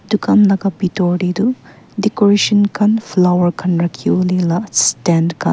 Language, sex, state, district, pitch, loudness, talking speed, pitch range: Nagamese, female, Nagaland, Kohima, 185 Hz, -15 LUFS, 140 wpm, 175-205 Hz